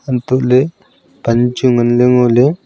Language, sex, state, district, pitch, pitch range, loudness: Wancho, male, Arunachal Pradesh, Longding, 125 Hz, 120-130 Hz, -13 LUFS